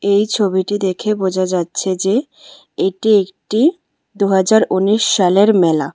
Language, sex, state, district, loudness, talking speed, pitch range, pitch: Bengali, female, Tripura, West Tripura, -15 LUFS, 120 wpm, 190-215 Hz, 200 Hz